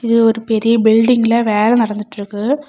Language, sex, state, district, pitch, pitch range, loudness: Tamil, female, Tamil Nadu, Kanyakumari, 225 Hz, 215-230 Hz, -14 LUFS